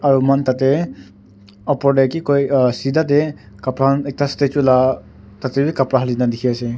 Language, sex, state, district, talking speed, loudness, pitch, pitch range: Nagamese, male, Nagaland, Dimapur, 195 wpm, -17 LUFS, 135 Hz, 120-140 Hz